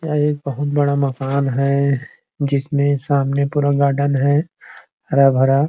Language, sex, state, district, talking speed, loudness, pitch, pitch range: Hindi, male, Chhattisgarh, Rajnandgaon, 160 wpm, -18 LUFS, 140 Hz, 140-145 Hz